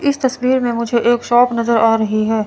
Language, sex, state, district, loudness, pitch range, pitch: Hindi, female, Chandigarh, Chandigarh, -15 LUFS, 225-250 Hz, 235 Hz